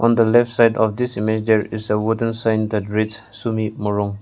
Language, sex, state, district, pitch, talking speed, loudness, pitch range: English, male, Nagaland, Kohima, 110 Hz, 170 wpm, -19 LUFS, 105-115 Hz